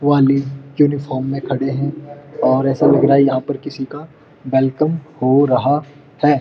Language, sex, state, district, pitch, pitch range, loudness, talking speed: Hindi, male, Uttar Pradesh, Muzaffarnagar, 140 Hz, 135-145 Hz, -17 LUFS, 160 wpm